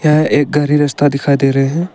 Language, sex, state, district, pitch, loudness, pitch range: Hindi, male, Arunachal Pradesh, Longding, 145 Hz, -13 LUFS, 140-150 Hz